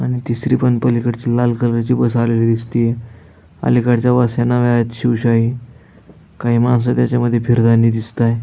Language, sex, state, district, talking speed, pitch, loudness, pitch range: Marathi, male, Maharashtra, Aurangabad, 130 wpm, 120 Hz, -16 LUFS, 115-120 Hz